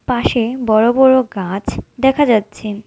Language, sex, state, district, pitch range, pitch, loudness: Bengali, female, West Bengal, Alipurduar, 210-260 Hz, 230 Hz, -14 LUFS